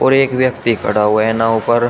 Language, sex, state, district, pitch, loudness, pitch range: Hindi, male, Uttar Pradesh, Shamli, 115 Hz, -14 LUFS, 110-130 Hz